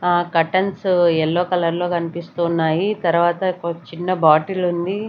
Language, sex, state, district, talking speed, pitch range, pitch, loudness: Telugu, female, Andhra Pradesh, Sri Satya Sai, 130 wpm, 170-185 Hz, 175 Hz, -19 LUFS